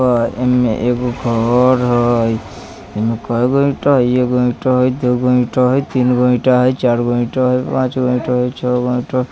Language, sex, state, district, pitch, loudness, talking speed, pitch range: Bajjika, male, Bihar, Vaishali, 125 Hz, -15 LUFS, 175 wpm, 120-125 Hz